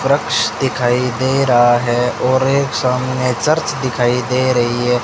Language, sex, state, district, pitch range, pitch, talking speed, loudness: Hindi, male, Rajasthan, Bikaner, 120-130 Hz, 125 Hz, 155 wpm, -15 LUFS